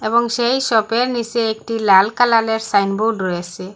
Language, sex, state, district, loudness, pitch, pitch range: Bengali, female, Assam, Hailakandi, -17 LUFS, 225 Hz, 200-235 Hz